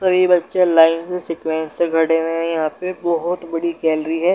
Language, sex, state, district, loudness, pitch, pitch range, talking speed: Hindi, male, Bihar, Darbhanga, -18 LUFS, 165 Hz, 165-180 Hz, 205 wpm